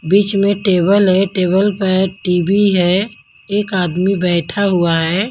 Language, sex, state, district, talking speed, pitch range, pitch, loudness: Hindi, female, Haryana, Jhajjar, 145 wpm, 180-200 Hz, 190 Hz, -15 LUFS